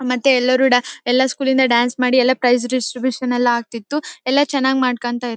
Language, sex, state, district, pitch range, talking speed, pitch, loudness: Kannada, female, Karnataka, Bellary, 245-265 Hz, 180 wpm, 255 Hz, -17 LUFS